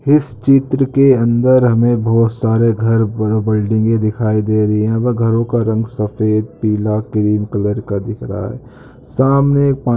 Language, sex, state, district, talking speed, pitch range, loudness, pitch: Hindi, male, Maharashtra, Chandrapur, 175 wpm, 110-125 Hz, -15 LUFS, 115 Hz